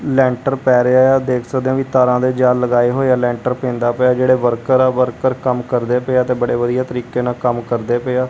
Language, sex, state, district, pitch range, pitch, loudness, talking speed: Punjabi, male, Punjab, Kapurthala, 125-130 Hz, 125 Hz, -16 LUFS, 240 wpm